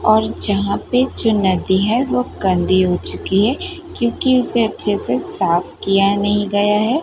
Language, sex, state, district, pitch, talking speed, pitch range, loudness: Hindi, female, Gujarat, Gandhinagar, 205 Hz, 170 wpm, 190-235 Hz, -16 LUFS